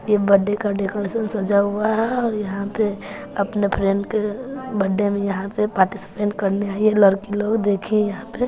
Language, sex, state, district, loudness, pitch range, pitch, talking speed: Hindi, female, Bihar, West Champaran, -21 LUFS, 200-215 Hz, 205 Hz, 185 wpm